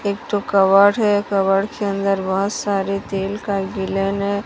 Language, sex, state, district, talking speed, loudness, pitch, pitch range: Hindi, female, Odisha, Sambalpur, 175 wpm, -19 LUFS, 200 Hz, 195-205 Hz